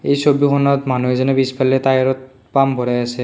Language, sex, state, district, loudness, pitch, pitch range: Assamese, male, Assam, Kamrup Metropolitan, -16 LUFS, 130 Hz, 130-135 Hz